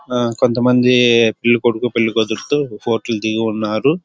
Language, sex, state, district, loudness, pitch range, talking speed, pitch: Telugu, male, Andhra Pradesh, Chittoor, -16 LUFS, 110-125 Hz, 105 wpm, 120 Hz